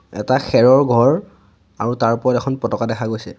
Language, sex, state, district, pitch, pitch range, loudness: Assamese, male, Assam, Sonitpur, 115 Hz, 100-120 Hz, -17 LUFS